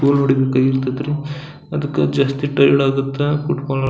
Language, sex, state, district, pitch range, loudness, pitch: Kannada, male, Karnataka, Belgaum, 135-145 Hz, -18 LUFS, 140 Hz